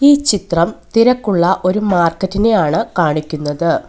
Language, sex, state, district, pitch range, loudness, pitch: Malayalam, female, Kerala, Kollam, 165-215 Hz, -15 LUFS, 185 Hz